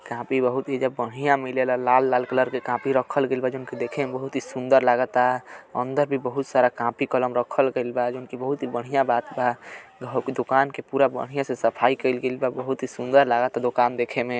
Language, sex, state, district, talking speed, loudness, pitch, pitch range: Bhojpuri, male, Uttar Pradesh, Gorakhpur, 235 wpm, -24 LUFS, 130 Hz, 125-135 Hz